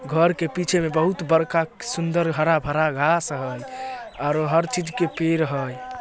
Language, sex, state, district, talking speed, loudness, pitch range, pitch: Magahi, male, Bihar, Samastipur, 160 wpm, -23 LUFS, 155-170 Hz, 165 Hz